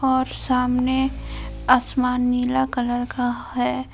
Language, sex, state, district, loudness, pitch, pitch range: Hindi, female, Jharkhand, Palamu, -22 LUFS, 250 Hz, 245-260 Hz